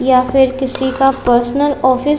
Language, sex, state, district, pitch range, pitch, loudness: Hindi, female, Punjab, Kapurthala, 255-270 Hz, 265 Hz, -14 LUFS